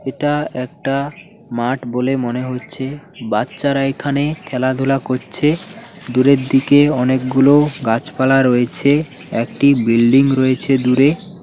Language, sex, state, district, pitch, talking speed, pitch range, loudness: Bengali, male, West Bengal, Paschim Medinipur, 135 Hz, 100 wpm, 125-145 Hz, -16 LUFS